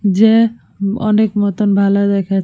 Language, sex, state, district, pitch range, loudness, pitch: Bengali, female, Jharkhand, Jamtara, 200-215 Hz, -14 LUFS, 200 Hz